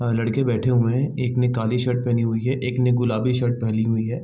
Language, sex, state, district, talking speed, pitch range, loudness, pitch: Hindi, male, Bihar, East Champaran, 270 wpm, 115-125 Hz, -22 LUFS, 120 Hz